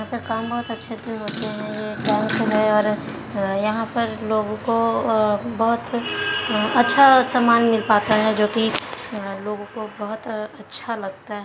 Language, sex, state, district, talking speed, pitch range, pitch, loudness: Hindi, female, Bihar, Jahanabad, 145 wpm, 210-230 Hz, 220 Hz, -21 LUFS